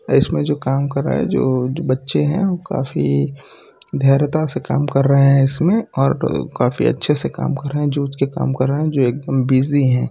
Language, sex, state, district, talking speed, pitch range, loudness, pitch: Hindi, male, Gujarat, Valsad, 195 wpm, 130-145 Hz, -18 LUFS, 140 Hz